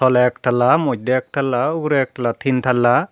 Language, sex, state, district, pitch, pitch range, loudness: Chakma, female, Tripura, Dhalai, 130 Hz, 125-140 Hz, -18 LUFS